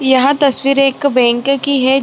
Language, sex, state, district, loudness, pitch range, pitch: Hindi, female, Bihar, Saran, -12 LUFS, 260-275 Hz, 275 Hz